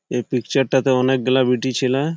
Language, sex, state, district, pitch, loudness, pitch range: Bengali, male, West Bengal, Malda, 130 Hz, -19 LUFS, 125-135 Hz